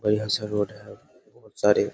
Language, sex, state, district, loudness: Hindi, male, Bihar, Saharsa, -25 LUFS